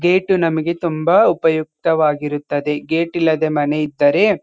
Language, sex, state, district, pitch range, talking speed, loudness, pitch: Kannada, male, Karnataka, Dharwad, 150-170 Hz, 120 wpm, -17 LUFS, 160 Hz